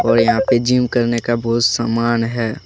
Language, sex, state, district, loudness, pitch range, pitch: Hindi, male, Jharkhand, Deoghar, -16 LUFS, 115-120 Hz, 120 Hz